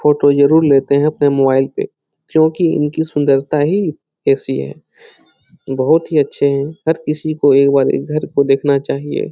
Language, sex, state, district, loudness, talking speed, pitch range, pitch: Hindi, male, Bihar, Jahanabad, -15 LUFS, 175 wpm, 140-155 Hz, 145 Hz